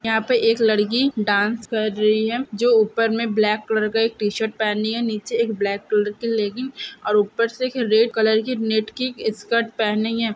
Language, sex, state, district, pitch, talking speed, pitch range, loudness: Hindi, female, Bihar, Purnia, 220 Hz, 210 wpm, 215-230 Hz, -21 LUFS